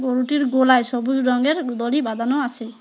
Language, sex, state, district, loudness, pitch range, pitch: Bengali, female, West Bengal, Alipurduar, -20 LUFS, 245-275 Hz, 255 Hz